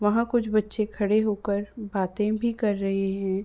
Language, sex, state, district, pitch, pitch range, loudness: Hindi, female, Uttar Pradesh, Ghazipur, 210 Hz, 200-215 Hz, -26 LUFS